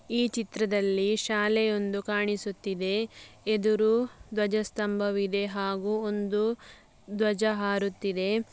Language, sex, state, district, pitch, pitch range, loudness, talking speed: Kannada, female, Karnataka, Dakshina Kannada, 210 Hz, 200-215 Hz, -28 LUFS, 70 wpm